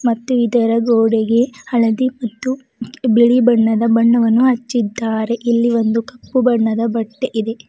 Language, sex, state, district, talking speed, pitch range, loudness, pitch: Kannada, female, Karnataka, Bidar, 115 wpm, 225-245 Hz, -16 LUFS, 235 Hz